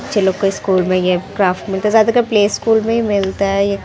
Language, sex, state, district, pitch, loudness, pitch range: Hindi, female, Bihar, Muzaffarpur, 200 Hz, -15 LUFS, 190-220 Hz